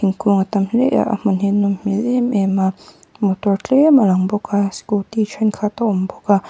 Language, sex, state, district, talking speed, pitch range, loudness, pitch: Mizo, female, Mizoram, Aizawl, 240 wpm, 195-220 Hz, -17 LUFS, 205 Hz